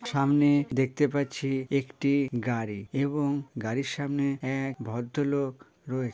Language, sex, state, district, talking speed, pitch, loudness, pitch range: Bengali, male, West Bengal, Paschim Medinipur, 115 wpm, 135 Hz, -28 LUFS, 130-140 Hz